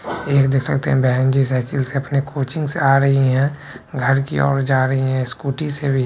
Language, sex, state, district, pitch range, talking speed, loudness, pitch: Hindi, male, Bihar, Purnia, 130-140 Hz, 215 wpm, -18 LUFS, 135 Hz